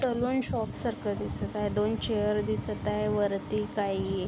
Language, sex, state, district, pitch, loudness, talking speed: Marathi, female, Maharashtra, Aurangabad, 200 Hz, -30 LUFS, 170 wpm